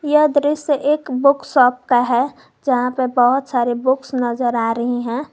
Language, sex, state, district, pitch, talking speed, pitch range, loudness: Hindi, female, Jharkhand, Garhwa, 255 Hz, 180 wpm, 245-280 Hz, -17 LUFS